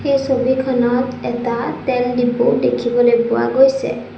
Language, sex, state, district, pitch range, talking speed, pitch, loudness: Assamese, female, Assam, Sonitpur, 240-260 Hz, 115 wpm, 245 Hz, -16 LUFS